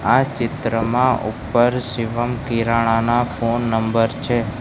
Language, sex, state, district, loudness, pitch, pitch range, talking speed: Gujarati, male, Gujarat, Gandhinagar, -19 LUFS, 120 Hz, 115-120 Hz, 105 wpm